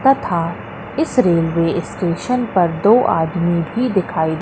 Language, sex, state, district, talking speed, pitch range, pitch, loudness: Hindi, female, Madhya Pradesh, Katni, 120 wpm, 165-240 Hz, 175 Hz, -17 LUFS